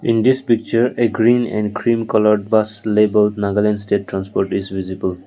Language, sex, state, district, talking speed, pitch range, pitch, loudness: English, male, Nagaland, Kohima, 170 wpm, 100-115 Hz, 105 Hz, -17 LUFS